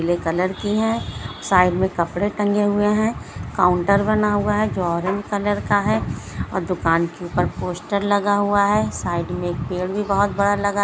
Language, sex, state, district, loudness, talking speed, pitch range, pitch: Hindi, female, Bihar, Samastipur, -20 LUFS, 205 wpm, 180-205 Hz, 200 Hz